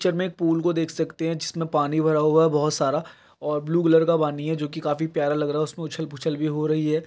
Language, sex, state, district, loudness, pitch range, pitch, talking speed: Hindi, male, Uttar Pradesh, Varanasi, -23 LUFS, 150-165 Hz, 160 Hz, 290 wpm